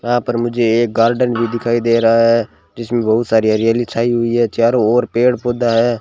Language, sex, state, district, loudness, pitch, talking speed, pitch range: Hindi, male, Rajasthan, Bikaner, -15 LUFS, 120 Hz, 220 wpm, 115-120 Hz